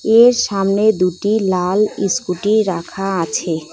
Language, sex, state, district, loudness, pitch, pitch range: Bengali, female, West Bengal, Cooch Behar, -16 LUFS, 195 Hz, 180-215 Hz